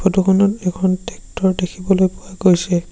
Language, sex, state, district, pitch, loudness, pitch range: Assamese, male, Assam, Sonitpur, 190 Hz, -17 LUFS, 185-195 Hz